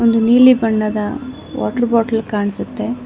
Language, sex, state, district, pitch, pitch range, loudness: Kannada, female, Karnataka, Bangalore, 230 Hz, 215-245 Hz, -15 LUFS